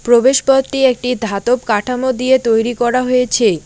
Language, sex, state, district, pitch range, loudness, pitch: Bengali, female, West Bengal, Alipurduar, 235-260 Hz, -14 LUFS, 250 Hz